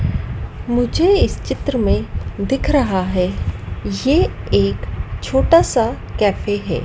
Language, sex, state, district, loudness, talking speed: Hindi, female, Madhya Pradesh, Dhar, -18 LUFS, 115 wpm